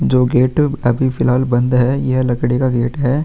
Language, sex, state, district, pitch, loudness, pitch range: Hindi, male, Uttar Pradesh, Jalaun, 125 Hz, -15 LUFS, 125-130 Hz